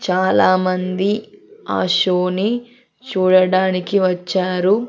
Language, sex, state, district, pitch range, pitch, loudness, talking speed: Telugu, female, Andhra Pradesh, Sri Satya Sai, 185-215 Hz, 185 Hz, -17 LUFS, 75 wpm